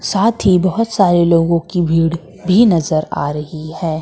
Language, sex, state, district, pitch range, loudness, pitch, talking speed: Hindi, female, Madhya Pradesh, Katni, 160-190 Hz, -15 LUFS, 170 Hz, 180 wpm